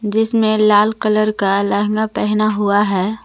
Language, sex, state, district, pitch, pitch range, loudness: Hindi, female, Jharkhand, Garhwa, 210 Hz, 205-215 Hz, -15 LUFS